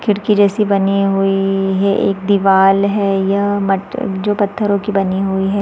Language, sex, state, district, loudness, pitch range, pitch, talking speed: Hindi, female, Chhattisgarh, Balrampur, -15 LUFS, 195-205 Hz, 200 Hz, 170 wpm